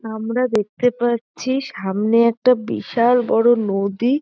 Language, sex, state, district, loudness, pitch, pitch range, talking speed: Bengali, female, West Bengal, North 24 Parganas, -18 LUFS, 235 Hz, 220-245 Hz, 115 wpm